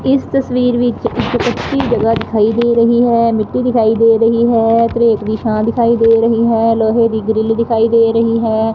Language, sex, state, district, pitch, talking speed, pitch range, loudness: Punjabi, female, Punjab, Fazilka, 230 Hz, 200 wpm, 225-235 Hz, -13 LUFS